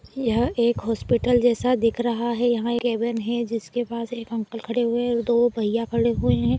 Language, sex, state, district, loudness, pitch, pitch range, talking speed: Hindi, female, Maharashtra, Dhule, -23 LUFS, 235 Hz, 230-240 Hz, 220 wpm